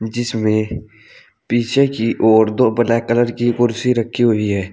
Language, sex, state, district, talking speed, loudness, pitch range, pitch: Hindi, male, Uttar Pradesh, Saharanpur, 150 wpm, -16 LUFS, 110-120 Hz, 115 Hz